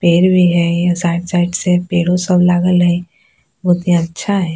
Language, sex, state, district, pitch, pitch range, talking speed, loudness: Bajjika, female, Bihar, Vaishali, 175 Hz, 175-180 Hz, 195 wpm, -14 LUFS